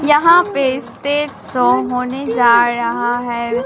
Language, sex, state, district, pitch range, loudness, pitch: Hindi, female, Bihar, Katihar, 240-280 Hz, -15 LUFS, 250 Hz